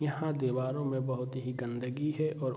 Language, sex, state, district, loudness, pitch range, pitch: Hindi, male, Bihar, Saharsa, -34 LUFS, 125-150 Hz, 130 Hz